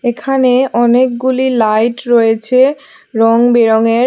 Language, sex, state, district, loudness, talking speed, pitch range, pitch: Bengali, female, Assam, Hailakandi, -11 LUFS, 90 wpm, 230-260 Hz, 240 Hz